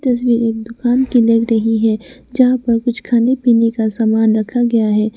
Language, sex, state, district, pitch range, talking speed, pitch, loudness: Hindi, female, Arunachal Pradesh, Lower Dibang Valley, 225-245 Hz, 195 wpm, 230 Hz, -15 LUFS